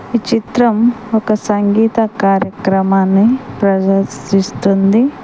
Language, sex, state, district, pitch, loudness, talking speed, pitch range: Telugu, female, Telangana, Mahabubabad, 210 Hz, -13 LUFS, 70 wpm, 195-230 Hz